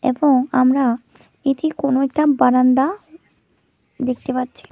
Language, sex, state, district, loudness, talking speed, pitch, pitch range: Bengali, female, Tripura, West Tripura, -18 LUFS, 100 wpm, 265 Hz, 255-285 Hz